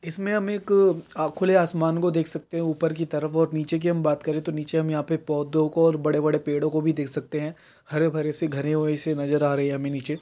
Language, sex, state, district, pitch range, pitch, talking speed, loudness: Hindi, male, Uttar Pradesh, Varanasi, 150-165 Hz, 155 Hz, 255 wpm, -24 LUFS